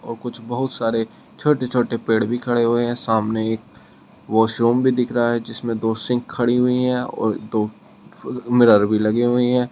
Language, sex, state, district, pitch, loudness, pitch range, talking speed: Hindi, male, Uttar Pradesh, Shamli, 120 Hz, -20 LUFS, 110-125 Hz, 190 wpm